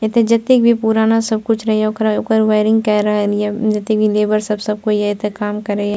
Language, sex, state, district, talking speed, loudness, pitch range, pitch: Maithili, female, Bihar, Purnia, 220 wpm, -15 LUFS, 210-220 Hz, 215 Hz